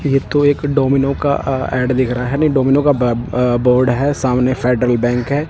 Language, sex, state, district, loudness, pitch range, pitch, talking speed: Hindi, male, Punjab, Kapurthala, -15 LUFS, 125-140 Hz, 130 Hz, 230 wpm